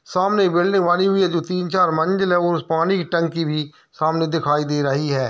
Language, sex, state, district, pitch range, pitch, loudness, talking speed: Hindi, male, Bihar, Lakhisarai, 155-180 Hz, 170 Hz, -19 LUFS, 235 wpm